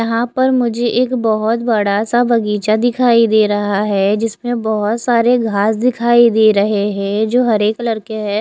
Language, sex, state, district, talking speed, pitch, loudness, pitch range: Hindi, female, Odisha, Khordha, 180 wpm, 225 Hz, -14 LUFS, 210-240 Hz